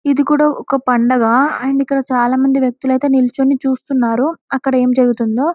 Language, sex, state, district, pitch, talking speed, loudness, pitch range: Telugu, female, Telangana, Karimnagar, 265 Hz, 140 wpm, -14 LUFS, 250-275 Hz